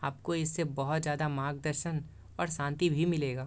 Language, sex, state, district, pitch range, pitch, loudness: Hindi, male, Bihar, East Champaran, 140-165 Hz, 150 Hz, -33 LUFS